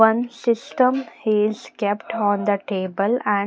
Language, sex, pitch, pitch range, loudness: English, female, 215 Hz, 205-235 Hz, -22 LUFS